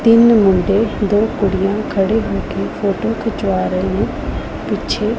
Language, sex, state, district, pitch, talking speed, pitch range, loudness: Punjabi, female, Punjab, Pathankot, 210 Hz, 125 wpm, 195-225 Hz, -16 LUFS